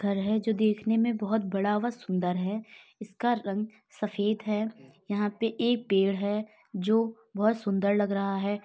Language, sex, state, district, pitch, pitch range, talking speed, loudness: Hindi, male, Uttar Pradesh, Muzaffarnagar, 210 Hz, 200-220 Hz, 175 wpm, -29 LUFS